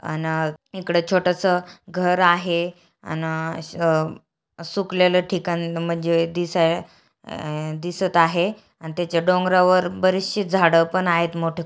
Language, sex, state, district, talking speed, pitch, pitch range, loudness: Marathi, female, Maharashtra, Aurangabad, 110 wpm, 175 Hz, 165-180 Hz, -21 LUFS